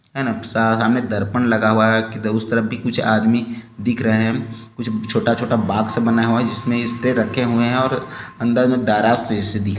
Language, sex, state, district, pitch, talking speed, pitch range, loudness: Hindi, male, Chhattisgarh, Bilaspur, 115 Hz, 195 wpm, 110-120 Hz, -18 LUFS